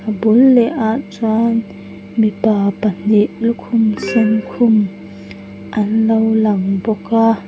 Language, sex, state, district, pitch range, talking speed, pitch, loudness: Mizo, female, Mizoram, Aizawl, 205-225 Hz, 120 wpm, 220 Hz, -15 LUFS